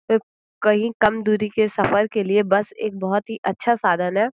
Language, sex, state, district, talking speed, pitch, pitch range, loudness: Hindi, female, Uttar Pradesh, Gorakhpur, 210 wpm, 210 Hz, 200-220 Hz, -20 LUFS